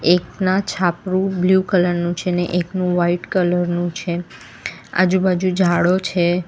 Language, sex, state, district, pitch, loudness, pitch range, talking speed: Gujarati, female, Gujarat, Valsad, 180 Hz, -18 LUFS, 175-185 Hz, 140 wpm